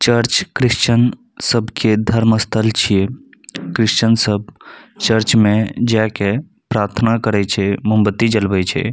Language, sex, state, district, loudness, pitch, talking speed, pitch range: Maithili, male, Bihar, Saharsa, -16 LUFS, 110 Hz, 115 wpm, 105-120 Hz